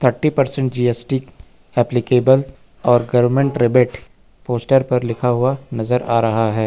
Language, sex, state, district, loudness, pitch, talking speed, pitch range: Hindi, male, Uttar Pradesh, Lucknow, -17 LUFS, 125 Hz, 135 wpm, 120-130 Hz